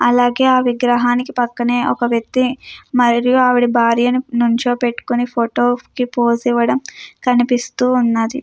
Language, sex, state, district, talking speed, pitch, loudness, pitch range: Telugu, female, Andhra Pradesh, Krishna, 115 wpm, 245 Hz, -16 LUFS, 240-250 Hz